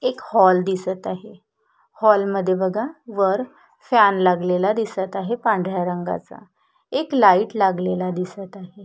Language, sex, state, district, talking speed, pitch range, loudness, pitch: Marathi, female, Maharashtra, Solapur, 120 wpm, 185-220 Hz, -20 LUFS, 195 Hz